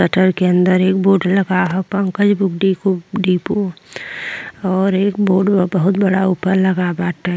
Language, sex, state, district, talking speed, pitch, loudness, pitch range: Bhojpuri, female, Uttar Pradesh, Deoria, 165 wpm, 190 Hz, -16 LUFS, 185-195 Hz